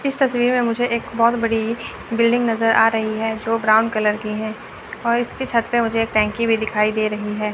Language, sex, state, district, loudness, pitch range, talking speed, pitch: Hindi, female, Chandigarh, Chandigarh, -19 LUFS, 215-235 Hz, 230 wpm, 225 Hz